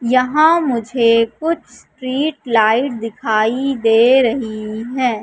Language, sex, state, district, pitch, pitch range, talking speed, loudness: Hindi, female, Madhya Pradesh, Katni, 245 Hz, 225-265 Hz, 105 wpm, -16 LUFS